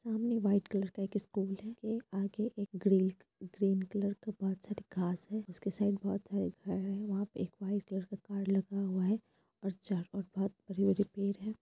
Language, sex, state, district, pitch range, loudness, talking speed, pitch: Hindi, female, Bihar, Purnia, 195-205 Hz, -36 LUFS, 215 wpm, 200 Hz